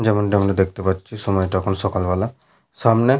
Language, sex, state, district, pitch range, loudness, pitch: Bengali, male, Jharkhand, Sahebganj, 95-110 Hz, -20 LUFS, 100 Hz